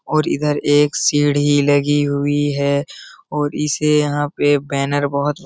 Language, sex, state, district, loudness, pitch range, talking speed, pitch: Hindi, male, Bihar, Araria, -17 LUFS, 145-150 Hz, 155 wpm, 145 Hz